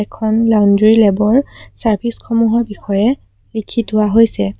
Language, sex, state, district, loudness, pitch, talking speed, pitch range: Assamese, female, Assam, Sonitpur, -14 LUFS, 220 Hz, 130 wpm, 210-230 Hz